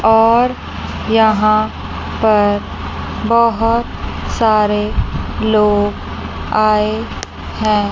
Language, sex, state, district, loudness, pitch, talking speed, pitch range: Hindi, female, Chandigarh, Chandigarh, -15 LUFS, 215 Hz, 60 wpm, 210-225 Hz